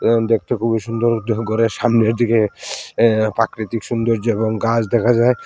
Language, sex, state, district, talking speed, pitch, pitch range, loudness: Bengali, male, Tripura, Unakoti, 165 wpm, 115 Hz, 110-115 Hz, -18 LUFS